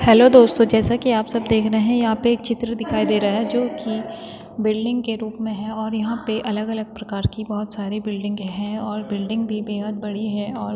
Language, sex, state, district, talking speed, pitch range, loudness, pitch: Hindi, female, Uttarakhand, Tehri Garhwal, 235 wpm, 210-225 Hz, -21 LUFS, 220 Hz